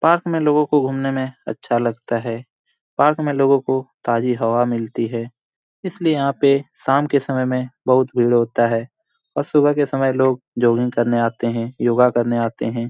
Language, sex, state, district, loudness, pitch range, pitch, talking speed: Hindi, male, Bihar, Jamui, -19 LUFS, 120-140 Hz, 130 Hz, 190 wpm